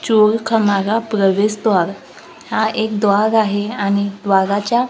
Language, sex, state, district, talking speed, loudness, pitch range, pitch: Marathi, female, Maharashtra, Gondia, 100 wpm, -16 LUFS, 200-220 Hz, 210 Hz